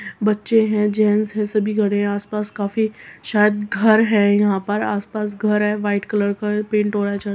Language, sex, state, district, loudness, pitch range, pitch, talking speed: Hindi, female, Uttar Pradesh, Muzaffarnagar, -19 LUFS, 205-215 Hz, 210 Hz, 185 wpm